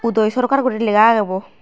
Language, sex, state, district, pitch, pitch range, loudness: Chakma, female, Tripura, Dhalai, 225 Hz, 215-245 Hz, -16 LUFS